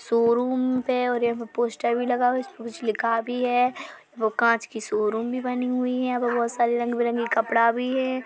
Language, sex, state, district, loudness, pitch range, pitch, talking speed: Hindi, female, Chhattisgarh, Bilaspur, -24 LUFS, 230-250 Hz, 240 Hz, 195 wpm